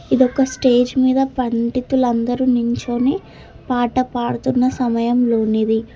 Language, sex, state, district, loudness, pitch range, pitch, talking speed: Telugu, female, Telangana, Hyderabad, -18 LUFS, 240-255 Hz, 245 Hz, 80 wpm